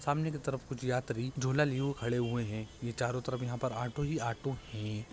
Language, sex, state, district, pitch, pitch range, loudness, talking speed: Hindi, male, Bihar, Purnia, 125 Hz, 120-135 Hz, -35 LUFS, 235 wpm